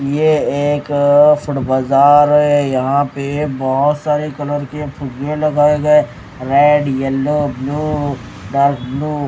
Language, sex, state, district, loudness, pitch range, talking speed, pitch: Hindi, male, Odisha, Khordha, -15 LUFS, 140-150 Hz, 135 wpm, 145 Hz